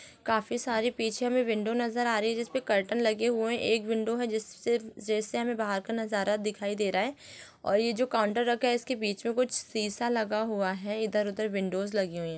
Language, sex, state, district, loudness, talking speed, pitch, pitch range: Hindi, female, Chhattisgarh, Rajnandgaon, -30 LUFS, 220 wpm, 220 Hz, 210-235 Hz